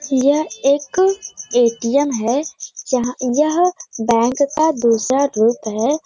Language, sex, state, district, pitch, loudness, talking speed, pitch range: Hindi, female, Uttar Pradesh, Varanasi, 270 Hz, -17 LUFS, 120 wpm, 235-300 Hz